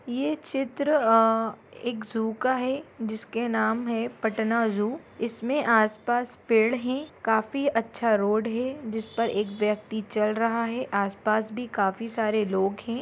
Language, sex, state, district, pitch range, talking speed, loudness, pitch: Bhojpuri, female, Bihar, Saran, 220-245 Hz, 145 wpm, -26 LUFS, 225 Hz